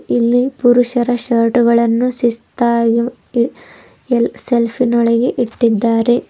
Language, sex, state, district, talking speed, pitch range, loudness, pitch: Kannada, female, Karnataka, Bidar, 85 wpm, 235-245 Hz, -14 LUFS, 235 Hz